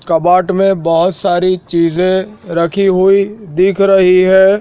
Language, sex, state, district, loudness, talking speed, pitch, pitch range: Hindi, male, Madhya Pradesh, Dhar, -11 LUFS, 130 wpm, 185 Hz, 175-195 Hz